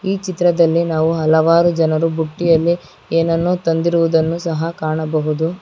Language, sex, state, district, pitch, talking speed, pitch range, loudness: Kannada, female, Karnataka, Bangalore, 165 Hz, 105 wpm, 160-170 Hz, -16 LUFS